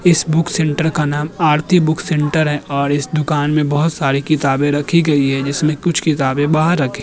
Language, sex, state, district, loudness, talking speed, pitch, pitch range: Hindi, male, Uttar Pradesh, Jyotiba Phule Nagar, -16 LUFS, 215 wpm, 150 Hz, 145-160 Hz